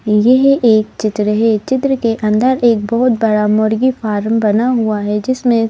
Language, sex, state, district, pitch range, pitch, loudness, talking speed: Hindi, female, Madhya Pradesh, Bhopal, 215-245 Hz, 225 Hz, -13 LUFS, 170 wpm